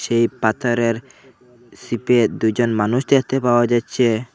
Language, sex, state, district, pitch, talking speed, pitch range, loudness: Bengali, male, Assam, Hailakandi, 120 Hz, 110 wpm, 115-125 Hz, -18 LUFS